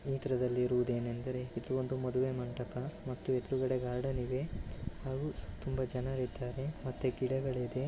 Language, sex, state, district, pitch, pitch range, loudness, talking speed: Kannada, male, Karnataka, Bellary, 130 Hz, 125-130 Hz, -37 LUFS, 135 wpm